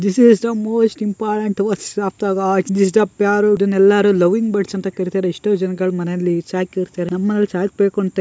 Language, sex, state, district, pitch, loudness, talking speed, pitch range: Kannada, male, Karnataka, Gulbarga, 200 Hz, -17 LUFS, 175 wpm, 185-210 Hz